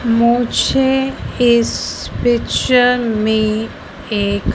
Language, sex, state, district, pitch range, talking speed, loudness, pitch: Hindi, female, Madhya Pradesh, Dhar, 220-245 Hz, 65 wpm, -15 LUFS, 235 Hz